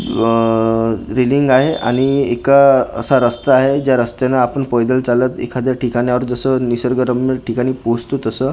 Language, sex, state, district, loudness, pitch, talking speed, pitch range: Marathi, male, Maharashtra, Gondia, -15 LUFS, 125 Hz, 155 wpm, 120-130 Hz